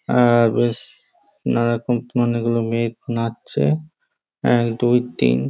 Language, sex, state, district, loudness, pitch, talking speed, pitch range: Bengali, male, West Bengal, Jhargram, -20 LUFS, 115 Hz, 85 wpm, 115-120 Hz